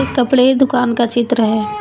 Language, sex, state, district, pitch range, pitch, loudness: Hindi, female, Jharkhand, Deoghar, 230-255 Hz, 245 Hz, -14 LUFS